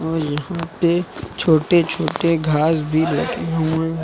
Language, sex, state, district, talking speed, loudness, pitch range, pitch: Hindi, male, Uttar Pradesh, Lucknow, 150 wpm, -19 LUFS, 155-170 Hz, 160 Hz